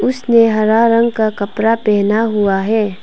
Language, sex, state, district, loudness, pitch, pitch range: Hindi, female, Arunachal Pradesh, Papum Pare, -14 LUFS, 220 Hz, 205-230 Hz